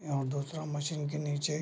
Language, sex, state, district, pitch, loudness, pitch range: Hindi, male, Bihar, Darbhanga, 145 Hz, -35 LUFS, 145-155 Hz